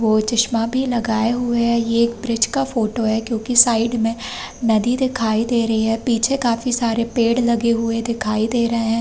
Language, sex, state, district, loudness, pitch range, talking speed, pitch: Hindi, female, Chhattisgarh, Raigarh, -18 LUFS, 225-240 Hz, 200 wpm, 230 Hz